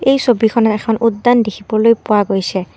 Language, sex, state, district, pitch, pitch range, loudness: Assamese, female, Assam, Kamrup Metropolitan, 225 Hz, 210-235 Hz, -14 LUFS